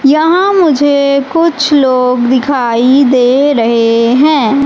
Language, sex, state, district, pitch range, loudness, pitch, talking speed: Hindi, female, Madhya Pradesh, Katni, 250-295 Hz, -9 LUFS, 275 Hz, 105 wpm